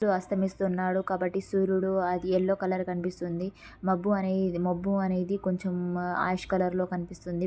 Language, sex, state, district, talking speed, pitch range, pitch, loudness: Telugu, female, Karnataka, Gulbarga, 135 wpm, 180-190 Hz, 185 Hz, -29 LUFS